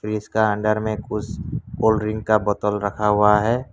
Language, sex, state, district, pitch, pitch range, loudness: Hindi, male, Assam, Kamrup Metropolitan, 105 Hz, 105-110 Hz, -21 LUFS